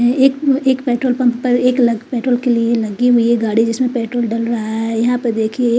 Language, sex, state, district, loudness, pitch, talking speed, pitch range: Hindi, female, Chandigarh, Chandigarh, -15 LUFS, 240 Hz, 215 wpm, 230-250 Hz